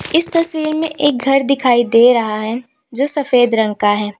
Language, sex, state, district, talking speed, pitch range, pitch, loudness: Hindi, female, Uttar Pradesh, Lalitpur, 200 wpm, 230-295 Hz, 255 Hz, -15 LUFS